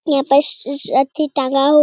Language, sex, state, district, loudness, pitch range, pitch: Hindi, female, Bihar, Lakhisarai, -16 LUFS, 275-300 Hz, 280 Hz